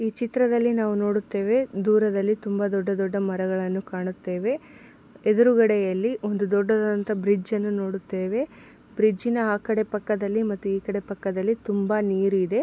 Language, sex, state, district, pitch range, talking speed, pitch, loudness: Kannada, female, Karnataka, Mysore, 195-220 Hz, 125 wpm, 210 Hz, -24 LUFS